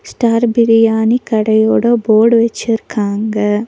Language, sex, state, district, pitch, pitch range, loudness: Tamil, female, Tamil Nadu, Nilgiris, 225 Hz, 220-235 Hz, -12 LUFS